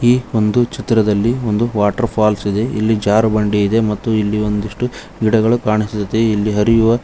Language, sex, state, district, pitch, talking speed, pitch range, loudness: Kannada, male, Karnataka, Koppal, 110 Hz, 135 wpm, 105-115 Hz, -16 LUFS